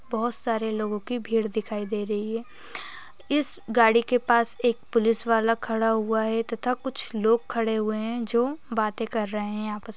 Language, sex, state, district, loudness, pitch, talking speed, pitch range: Hindi, male, Chhattisgarh, Raigarh, -25 LUFS, 225 Hz, 185 wpm, 220-240 Hz